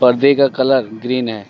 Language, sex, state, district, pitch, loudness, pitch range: Hindi, male, West Bengal, Alipurduar, 125 Hz, -15 LUFS, 115-135 Hz